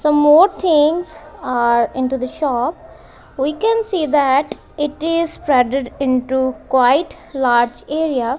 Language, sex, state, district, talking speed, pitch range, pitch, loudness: English, female, Punjab, Kapurthala, 130 wpm, 255-310 Hz, 275 Hz, -17 LUFS